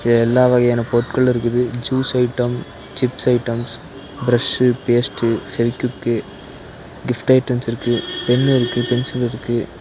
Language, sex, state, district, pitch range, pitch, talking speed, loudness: Tamil, male, Tamil Nadu, Nilgiris, 120-125 Hz, 120 Hz, 115 wpm, -18 LUFS